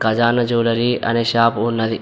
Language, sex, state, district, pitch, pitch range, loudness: Telugu, male, Andhra Pradesh, Anantapur, 115 Hz, 115-120 Hz, -17 LUFS